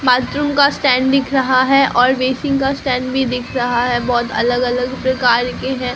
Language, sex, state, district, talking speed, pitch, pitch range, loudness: Hindi, female, Bihar, Katihar, 200 wpm, 255 Hz, 245-270 Hz, -15 LUFS